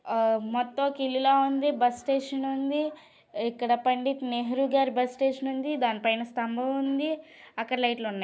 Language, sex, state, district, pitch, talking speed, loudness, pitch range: Telugu, female, Andhra Pradesh, Krishna, 265 Hz, 160 wpm, -28 LUFS, 240-275 Hz